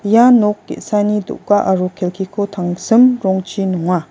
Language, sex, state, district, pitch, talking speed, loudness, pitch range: Garo, female, Meghalaya, West Garo Hills, 200 Hz, 130 wpm, -15 LUFS, 185-210 Hz